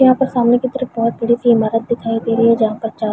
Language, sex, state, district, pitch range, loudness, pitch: Hindi, female, Chhattisgarh, Bilaspur, 225-240 Hz, -16 LUFS, 230 Hz